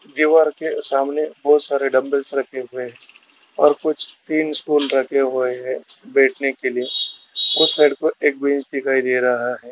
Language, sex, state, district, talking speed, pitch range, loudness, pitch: Hindi, male, Bihar, Gaya, 125 wpm, 130-150 Hz, -18 LUFS, 140 Hz